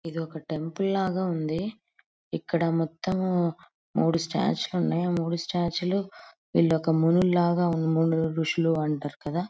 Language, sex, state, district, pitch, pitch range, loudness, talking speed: Telugu, female, Andhra Pradesh, Guntur, 170 Hz, 160-180 Hz, -26 LUFS, 115 wpm